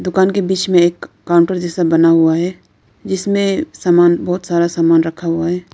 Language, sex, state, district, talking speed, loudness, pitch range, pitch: Hindi, female, Arunachal Pradesh, Lower Dibang Valley, 190 wpm, -14 LUFS, 165-185 Hz, 175 Hz